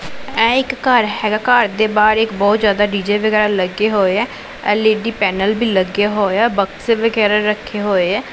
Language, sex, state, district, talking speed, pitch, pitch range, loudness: Punjabi, female, Punjab, Pathankot, 185 wpm, 210 Hz, 205-225 Hz, -15 LUFS